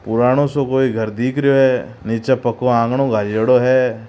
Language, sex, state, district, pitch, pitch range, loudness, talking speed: Marwari, male, Rajasthan, Churu, 125 Hz, 115-130 Hz, -16 LUFS, 175 wpm